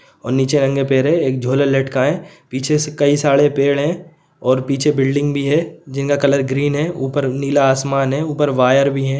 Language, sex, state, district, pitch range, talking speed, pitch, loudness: Hindi, male, Chhattisgarh, Rajnandgaon, 135-145 Hz, 195 wpm, 140 Hz, -16 LUFS